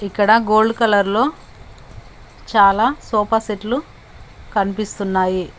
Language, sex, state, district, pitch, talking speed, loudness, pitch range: Telugu, female, Telangana, Mahabubabad, 210 Hz, 65 wpm, -17 LUFS, 200-225 Hz